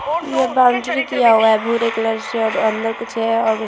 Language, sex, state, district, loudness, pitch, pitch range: Hindi, female, Bihar, Vaishali, -17 LUFS, 230 Hz, 225-245 Hz